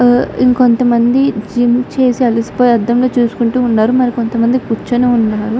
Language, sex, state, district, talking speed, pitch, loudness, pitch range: Telugu, female, Andhra Pradesh, Guntur, 105 wpm, 245 Hz, -12 LUFS, 230-250 Hz